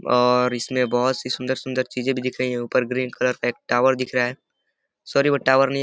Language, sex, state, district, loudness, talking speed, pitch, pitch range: Hindi, male, Uttar Pradesh, Deoria, -22 LUFS, 245 wpm, 125 Hz, 125-130 Hz